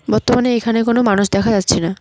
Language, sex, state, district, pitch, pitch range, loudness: Bengali, female, West Bengal, Cooch Behar, 225 Hz, 200-235 Hz, -15 LUFS